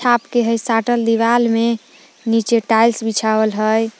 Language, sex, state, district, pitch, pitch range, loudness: Magahi, female, Jharkhand, Palamu, 230 Hz, 225-235 Hz, -16 LUFS